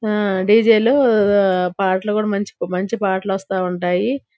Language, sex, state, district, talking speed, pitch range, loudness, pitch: Telugu, female, Andhra Pradesh, Guntur, 125 wpm, 190-215 Hz, -17 LUFS, 200 Hz